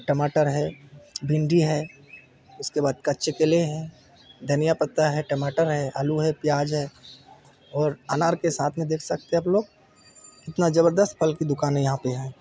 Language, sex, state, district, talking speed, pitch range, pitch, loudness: Hindi, male, Chhattisgarh, Bilaspur, 180 wpm, 145-160 Hz, 150 Hz, -24 LUFS